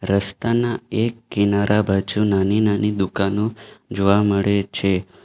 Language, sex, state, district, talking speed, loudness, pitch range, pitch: Gujarati, male, Gujarat, Valsad, 115 wpm, -20 LUFS, 100-105 Hz, 100 Hz